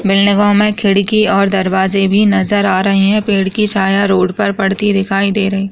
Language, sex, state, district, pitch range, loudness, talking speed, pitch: Hindi, female, Rajasthan, Churu, 195-205 Hz, -12 LUFS, 230 wpm, 200 Hz